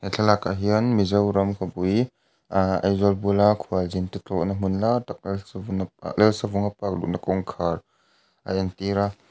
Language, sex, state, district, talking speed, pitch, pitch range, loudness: Mizo, male, Mizoram, Aizawl, 150 wpm, 100 Hz, 95-105 Hz, -24 LUFS